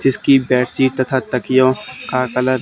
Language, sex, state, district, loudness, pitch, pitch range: Hindi, male, Haryana, Charkhi Dadri, -16 LUFS, 130 Hz, 125-130 Hz